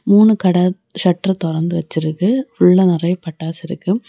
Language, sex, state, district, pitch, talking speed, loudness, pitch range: Tamil, female, Tamil Nadu, Kanyakumari, 180 Hz, 130 wpm, -16 LUFS, 170-195 Hz